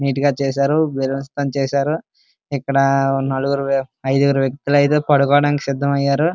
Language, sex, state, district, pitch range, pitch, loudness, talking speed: Telugu, male, Andhra Pradesh, Srikakulam, 135-145 Hz, 140 Hz, -18 LUFS, 115 wpm